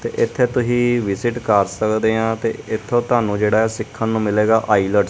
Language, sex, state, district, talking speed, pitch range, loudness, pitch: Punjabi, male, Punjab, Kapurthala, 200 wpm, 105-120 Hz, -18 LUFS, 110 Hz